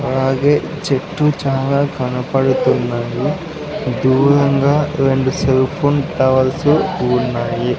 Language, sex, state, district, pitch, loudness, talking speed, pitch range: Telugu, male, Andhra Pradesh, Sri Satya Sai, 135 Hz, -16 LUFS, 75 wpm, 130-145 Hz